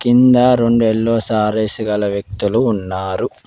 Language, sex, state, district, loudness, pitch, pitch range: Telugu, male, Telangana, Mahabubabad, -15 LUFS, 110 Hz, 100-115 Hz